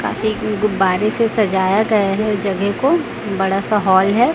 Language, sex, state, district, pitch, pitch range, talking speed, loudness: Hindi, female, Chhattisgarh, Raipur, 210 Hz, 195-220 Hz, 180 wpm, -17 LUFS